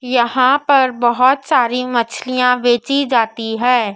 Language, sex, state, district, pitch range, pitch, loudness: Hindi, female, Madhya Pradesh, Dhar, 240-260 Hz, 250 Hz, -15 LUFS